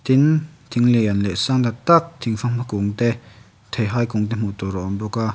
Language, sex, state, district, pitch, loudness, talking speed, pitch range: Mizo, male, Mizoram, Aizawl, 115 Hz, -20 LUFS, 215 wpm, 105-125 Hz